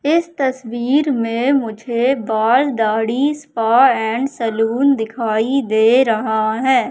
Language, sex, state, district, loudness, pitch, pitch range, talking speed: Hindi, female, Madhya Pradesh, Katni, -16 LUFS, 240 Hz, 225-275 Hz, 115 wpm